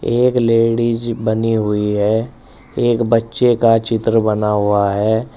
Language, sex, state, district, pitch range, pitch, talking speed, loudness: Hindi, male, Uttar Pradesh, Saharanpur, 110-115 Hz, 115 Hz, 135 wpm, -16 LUFS